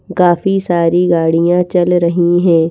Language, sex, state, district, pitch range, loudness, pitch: Hindi, female, Madhya Pradesh, Bhopal, 170-180 Hz, -12 LUFS, 175 Hz